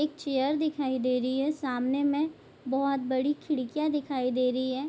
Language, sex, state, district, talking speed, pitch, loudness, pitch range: Hindi, female, Bihar, Bhagalpur, 185 wpm, 275 Hz, -29 LUFS, 255-295 Hz